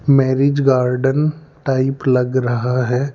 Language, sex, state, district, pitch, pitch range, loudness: Hindi, male, Madhya Pradesh, Bhopal, 135 Hz, 125-140 Hz, -17 LUFS